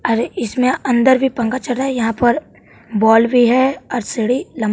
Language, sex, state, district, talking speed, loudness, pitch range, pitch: Hindi, male, Bihar, West Champaran, 180 wpm, -16 LUFS, 230-260 Hz, 245 Hz